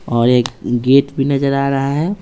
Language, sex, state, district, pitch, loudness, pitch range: Hindi, male, Bihar, Patna, 140 Hz, -15 LUFS, 125-140 Hz